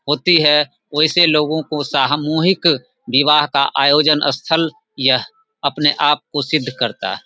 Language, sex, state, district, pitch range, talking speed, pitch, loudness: Hindi, male, Bihar, Samastipur, 145-160 Hz, 140 wpm, 150 Hz, -15 LUFS